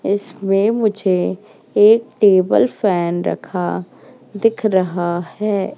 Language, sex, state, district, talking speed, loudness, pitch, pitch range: Hindi, female, Madhya Pradesh, Katni, 95 wpm, -17 LUFS, 200 Hz, 180-215 Hz